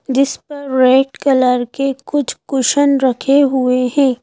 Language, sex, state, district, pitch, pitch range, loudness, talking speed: Hindi, female, Madhya Pradesh, Bhopal, 270 Hz, 255-280 Hz, -14 LUFS, 140 wpm